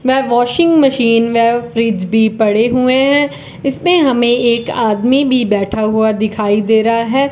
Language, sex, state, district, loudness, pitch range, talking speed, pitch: Hindi, female, Rajasthan, Bikaner, -13 LUFS, 220-265 Hz, 165 wpm, 235 Hz